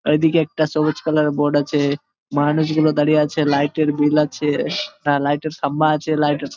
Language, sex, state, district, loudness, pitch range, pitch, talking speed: Bengali, male, West Bengal, Malda, -19 LUFS, 145-155 Hz, 150 Hz, 200 wpm